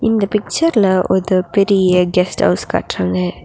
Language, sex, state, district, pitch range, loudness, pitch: Tamil, female, Tamil Nadu, Nilgiris, 180-205 Hz, -15 LUFS, 185 Hz